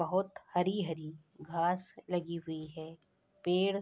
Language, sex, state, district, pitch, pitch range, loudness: Hindi, female, Bihar, Bhagalpur, 175 Hz, 160-185 Hz, -36 LUFS